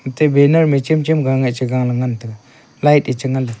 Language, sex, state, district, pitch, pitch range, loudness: Wancho, male, Arunachal Pradesh, Longding, 130 Hz, 125-150 Hz, -15 LUFS